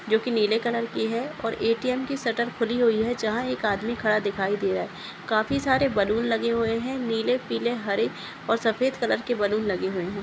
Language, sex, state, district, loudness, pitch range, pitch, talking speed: Hindi, female, Maharashtra, Sindhudurg, -25 LUFS, 215-245 Hz, 230 Hz, 215 wpm